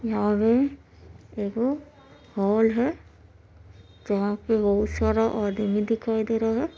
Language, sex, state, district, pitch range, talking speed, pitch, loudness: Maithili, female, Bihar, Supaul, 200-225 Hz, 125 wpm, 220 Hz, -25 LUFS